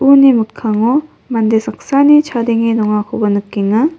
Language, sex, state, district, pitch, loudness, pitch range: Garo, female, Meghalaya, West Garo Hills, 230 Hz, -13 LUFS, 215-275 Hz